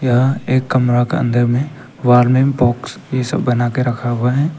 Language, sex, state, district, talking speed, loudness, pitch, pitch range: Hindi, male, Arunachal Pradesh, Papum Pare, 185 wpm, -16 LUFS, 125 Hz, 125-135 Hz